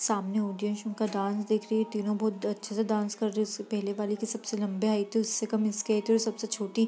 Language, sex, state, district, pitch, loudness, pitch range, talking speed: Hindi, female, Bihar, East Champaran, 215 Hz, -30 LUFS, 210-220 Hz, 255 wpm